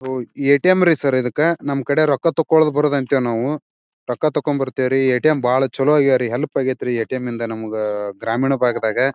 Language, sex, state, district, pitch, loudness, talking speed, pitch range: Kannada, male, Karnataka, Bijapur, 135 Hz, -18 LUFS, 170 wpm, 125-150 Hz